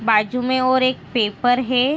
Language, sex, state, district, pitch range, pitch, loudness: Hindi, female, Bihar, Araria, 235-255 Hz, 250 Hz, -19 LUFS